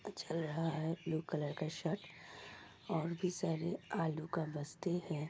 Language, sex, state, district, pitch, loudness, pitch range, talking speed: Hindi, female, Uttar Pradesh, Ghazipur, 165 Hz, -40 LUFS, 155-170 Hz, 170 wpm